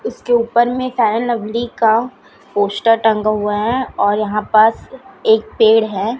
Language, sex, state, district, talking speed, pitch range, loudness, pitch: Hindi, female, Chhattisgarh, Raipur, 155 wpm, 215-240 Hz, -15 LUFS, 225 Hz